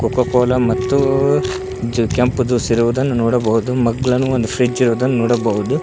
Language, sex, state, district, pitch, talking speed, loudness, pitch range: Kannada, male, Karnataka, Koppal, 125 Hz, 135 wpm, -16 LUFS, 115-125 Hz